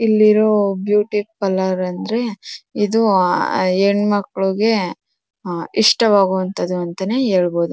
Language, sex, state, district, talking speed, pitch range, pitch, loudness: Kannada, female, Karnataka, Mysore, 95 wpm, 185-215 Hz, 200 Hz, -17 LUFS